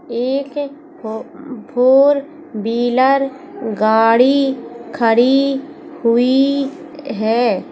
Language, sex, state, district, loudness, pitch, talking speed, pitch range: Hindi, female, Uttar Pradesh, Hamirpur, -16 LUFS, 270 Hz, 55 wpm, 235-285 Hz